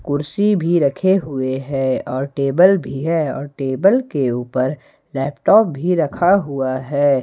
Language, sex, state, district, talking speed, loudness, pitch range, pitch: Hindi, male, Jharkhand, Ranchi, 150 wpm, -18 LUFS, 135-175 Hz, 140 Hz